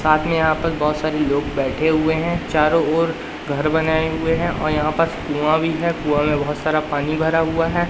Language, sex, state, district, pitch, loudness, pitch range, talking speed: Hindi, male, Madhya Pradesh, Katni, 155 Hz, -19 LUFS, 150-165 Hz, 220 wpm